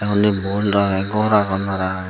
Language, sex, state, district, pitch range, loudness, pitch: Chakma, female, Tripura, Dhalai, 95-105 Hz, -18 LUFS, 100 Hz